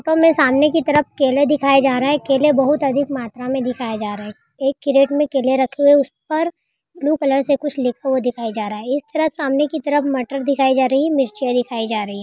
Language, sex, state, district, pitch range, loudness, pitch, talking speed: Hindi, female, Rajasthan, Churu, 255-290 Hz, -18 LUFS, 275 Hz, 245 wpm